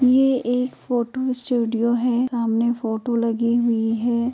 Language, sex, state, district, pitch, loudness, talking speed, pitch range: Hindi, female, Uttar Pradesh, Jyotiba Phule Nagar, 240 Hz, -21 LUFS, 140 wpm, 230-250 Hz